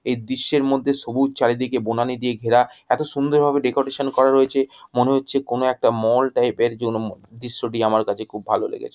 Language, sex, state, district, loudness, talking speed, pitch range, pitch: Bengali, female, West Bengal, Jhargram, -20 LUFS, 180 wpm, 120-135 Hz, 125 Hz